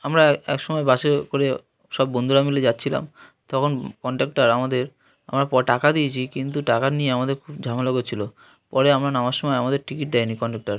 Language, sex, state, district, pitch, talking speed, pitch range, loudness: Bengali, male, West Bengal, North 24 Parganas, 135 Hz, 170 wpm, 125-140 Hz, -22 LUFS